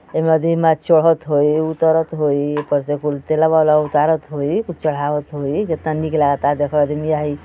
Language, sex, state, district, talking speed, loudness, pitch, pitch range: Bhojpuri, male, Uttar Pradesh, Ghazipur, 195 wpm, -17 LUFS, 150 Hz, 145-160 Hz